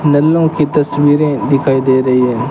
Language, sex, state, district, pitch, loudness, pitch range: Hindi, male, Rajasthan, Bikaner, 145 Hz, -12 LUFS, 130-150 Hz